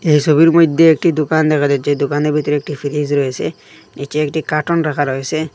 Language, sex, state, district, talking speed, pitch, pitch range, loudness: Bengali, male, Assam, Hailakandi, 170 wpm, 150 Hz, 145-160 Hz, -15 LUFS